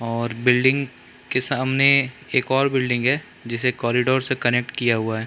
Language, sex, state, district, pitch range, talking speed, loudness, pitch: Hindi, male, Uttar Pradesh, Gorakhpur, 120-135 Hz, 170 wpm, -20 LUFS, 130 Hz